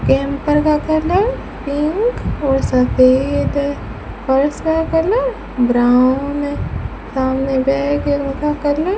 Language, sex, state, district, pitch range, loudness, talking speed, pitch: Hindi, female, Rajasthan, Bikaner, 270-310 Hz, -16 LUFS, 115 wpm, 285 Hz